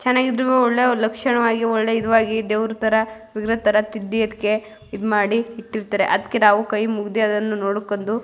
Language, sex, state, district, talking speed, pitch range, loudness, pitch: Kannada, female, Karnataka, Mysore, 155 wpm, 210-225 Hz, -20 LUFS, 220 Hz